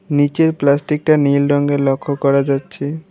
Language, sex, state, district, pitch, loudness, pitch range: Bengali, male, West Bengal, Alipurduar, 145 Hz, -16 LUFS, 140-155 Hz